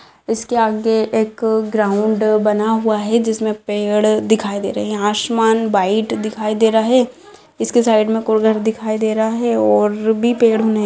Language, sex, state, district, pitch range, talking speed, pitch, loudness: Hindi, female, Bihar, East Champaran, 215-225 Hz, 175 wpm, 220 Hz, -16 LUFS